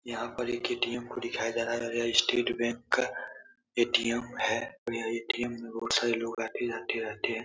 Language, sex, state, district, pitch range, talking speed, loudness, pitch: Hindi, male, Uttar Pradesh, Etah, 115-120 Hz, 195 wpm, -31 LUFS, 120 Hz